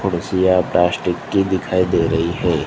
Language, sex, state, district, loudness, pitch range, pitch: Hindi, male, Gujarat, Gandhinagar, -18 LUFS, 85-95 Hz, 90 Hz